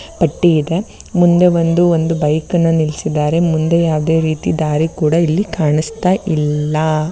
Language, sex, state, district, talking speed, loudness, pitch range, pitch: Kannada, female, Karnataka, Bellary, 125 wpm, -15 LUFS, 155-170 Hz, 165 Hz